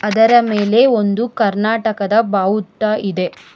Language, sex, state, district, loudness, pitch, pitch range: Kannada, female, Karnataka, Bangalore, -15 LUFS, 215 Hz, 200-225 Hz